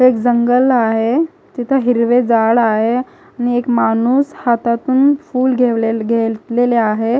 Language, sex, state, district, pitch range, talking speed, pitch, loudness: Marathi, female, Maharashtra, Gondia, 230-260 Hz, 125 wpm, 245 Hz, -15 LUFS